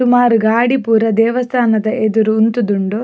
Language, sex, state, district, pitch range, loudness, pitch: Tulu, female, Karnataka, Dakshina Kannada, 220-245 Hz, -14 LUFS, 225 Hz